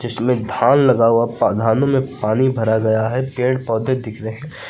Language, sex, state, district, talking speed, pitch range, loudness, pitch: Hindi, male, Uttar Pradesh, Lucknow, 190 wpm, 110-130 Hz, -17 LUFS, 120 Hz